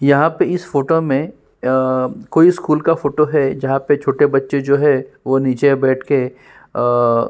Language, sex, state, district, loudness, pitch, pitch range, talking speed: Hindi, male, Uttarakhand, Tehri Garhwal, -16 LUFS, 140 Hz, 130-150 Hz, 170 wpm